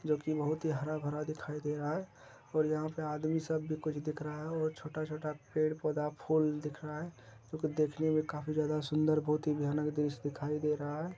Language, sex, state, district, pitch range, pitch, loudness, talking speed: Hindi, male, Bihar, Lakhisarai, 150-155 Hz, 155 Hz, -35 LUFS, 220 wpm